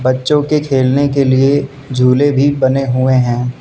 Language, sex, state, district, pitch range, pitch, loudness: Hindi, male, Uttar Pradesh, Lucknow, 130-140 Hz, 135 Hz, -13 LUFS